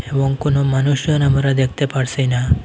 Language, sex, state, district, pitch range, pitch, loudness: Bengali, male, Assam, Hailakandi, 130-140 Hz, 135 Hz, -17 LUFS